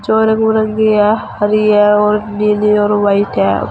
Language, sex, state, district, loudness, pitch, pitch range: Hindi, female, Uttar Pradesh, Saharanpur, -12 LUFS, 210 Hz, 205-215 Hz